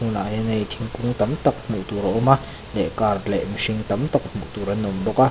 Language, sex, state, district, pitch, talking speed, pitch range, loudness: Mizo, male, Mizoram, Aizawl, 110 Hz, 260 wpm, 105-130 Hz, -22 LUFS